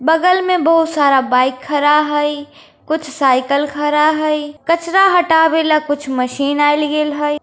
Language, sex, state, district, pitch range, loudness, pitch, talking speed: Hindi, female, Bihar, Darbhanga, 290-320 Hz, -14 LUFS, 295 Hz, 155 wpm